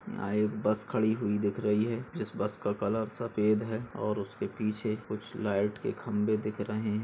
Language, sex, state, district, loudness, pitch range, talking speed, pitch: Hindi, male, Uttar Pradesh, Budaun, -32 LUFS, 105-110 Hz, 205 wpm, 105 Hz